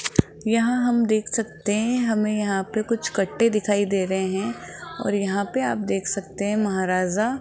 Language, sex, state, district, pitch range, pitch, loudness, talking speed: Hindi, female, Rajasthan, Jaipur, 195-225 Hz, 210 Hz, -23 LUFS, 185 wpm